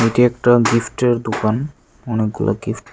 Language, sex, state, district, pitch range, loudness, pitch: Bengali, male, Tripura, West Tripura, 110-120 Hz, -17 LUFS, 115 Hz